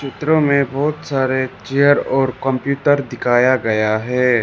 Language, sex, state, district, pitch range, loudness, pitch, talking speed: Hindi, male, Arunachal Pradesh, Lower Dibang Valley, 125-140 Hz, -17 LUFS, 135 Hz, 135 wpm